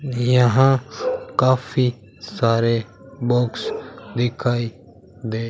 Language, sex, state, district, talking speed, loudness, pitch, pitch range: Hindi, male, Rajasthan, Bikaner, 65 wpm, -20 LUFS, 120 Hz, 115-130 Hz